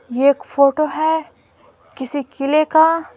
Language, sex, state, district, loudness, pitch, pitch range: Hindi, female, Bihar, Patna, -17 LUFS, 285 Hz, 275-315 Hz